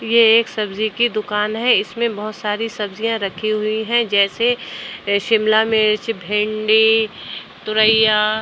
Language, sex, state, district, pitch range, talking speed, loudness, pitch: Hindi, female, Uttar Pradesh, Budaun, 210-225 Hz, 130 wpm, -17 LUFS, 215 Hz